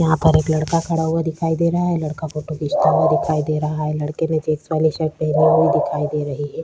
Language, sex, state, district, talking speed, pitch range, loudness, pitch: Hindi, female, Chhattisgarh, Korba, 270 wpm, 150-160 Hz, -19 LUFS, 155 Hz